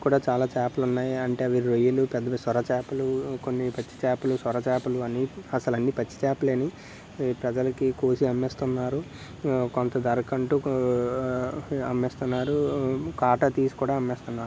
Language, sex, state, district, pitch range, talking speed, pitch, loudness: Telugu, male, Andhra Pradesh, Srikakulam, 125-135 Hz, 150 wpm, 130 Hz, -27 LUFS